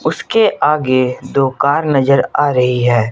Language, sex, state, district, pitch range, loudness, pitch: Hindi, male, Jharkhand, Garhwa, 125-150 Hz, -14 LUFS, 135 Hz